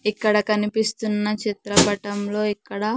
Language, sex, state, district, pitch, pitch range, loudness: Telugu, female, Andhra Pradesh, Sri Satya Sai, 210 Hz, 205-215 Hz, -22 LUFS